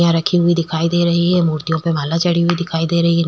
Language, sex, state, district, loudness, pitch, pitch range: Hindi, female, Uttarakhand, Tehri Garhwal, -16 LUFS, 170 Hz, 165-170 Hz